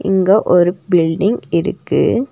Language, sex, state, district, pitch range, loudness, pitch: Tamil, female, Tamil Nadu, Nilgiris, 175-210 Hz, -15 LUFS, 195 Hz